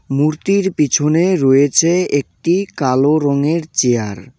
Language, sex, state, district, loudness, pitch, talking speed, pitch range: Bengali, male, West Bengal, Cooch Behar, -15 LUFS, 150 Hz, 110 wpm, 135-170 Hz